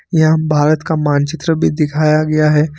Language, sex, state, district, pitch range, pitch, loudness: Hindi, male, Jharkhand, Ranchi, 150-160 Hz, 155 Hz, -14 LUFS